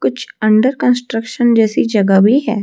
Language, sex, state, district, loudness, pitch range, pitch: Hindi, female, Odisha, Malkangiri, -13 LUFS, 215-250 Hz, 225 Hz